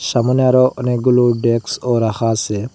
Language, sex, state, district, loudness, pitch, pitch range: Bengali, male, Assam, Hailakandi, -15 LUFS, 120 Hz, 115-125 Hz